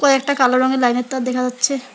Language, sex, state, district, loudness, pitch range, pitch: Bengali, female, West Bengal, Alipurduar, -17 LUFS, 250-270 Hz, 255 Hz